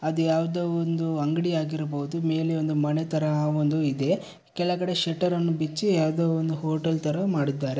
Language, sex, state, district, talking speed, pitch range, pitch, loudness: Kannada, male, Karnataka, Bellary, 145 wpm, 155-170 Hz, 160 Hz, -26 LUFS